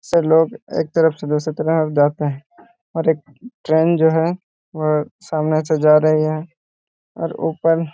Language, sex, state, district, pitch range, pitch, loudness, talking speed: Hindi, male, Jharkhand, Jamtara, 155-165 Hz, 160 Hz, -18 LUFS, 175 wpm